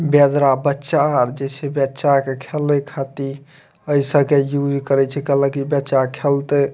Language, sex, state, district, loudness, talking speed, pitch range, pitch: Maithili, male, Bihar, Madhepura, -18 LUFS, 170 wpm, 135-145 Hz, 140 Hz